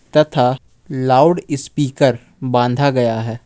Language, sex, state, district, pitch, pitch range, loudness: Hindi, male, Jharkhand, Ranchi, 130 Hz, 120-145 Hz, -16 LUFS